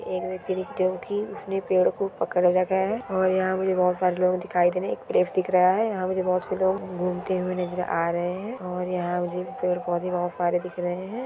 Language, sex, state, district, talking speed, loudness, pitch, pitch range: Hindi, female, Bihar, Madhepura, 245 wpm, -25 LUFS, 185 Hz, 180-185 Hz